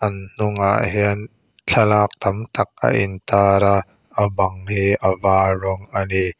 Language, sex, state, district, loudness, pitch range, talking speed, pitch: Mizo, male, Mizoram, Aizawl, -19 LUFS, 95-105 Hz, 150 wpm, 100 Hz